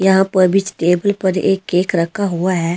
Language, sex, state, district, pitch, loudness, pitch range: Hindi, female, Delhi, New Delhi, 190 Hz, -16 LUFS, 175-195 Hz